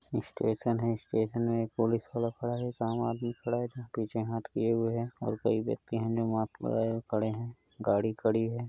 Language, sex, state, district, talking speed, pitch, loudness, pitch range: Hindi, male, Uttar Pradesh, Hamirpur, 195 wpm, 115 Hz, -32 LUFS, 110-120 Hz